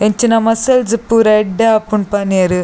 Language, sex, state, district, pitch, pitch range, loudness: Tulu, female, Karnataka, Dakshina Kannada, 215 Hz, 205-225 Hz, -13 LUFS